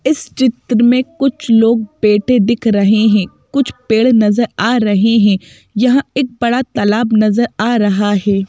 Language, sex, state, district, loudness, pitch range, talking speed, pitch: Hindi, female, Madhya Pradesh, Bhopal, -13 LUFS, 210-250 Hz, 160 wpm, 230 Hz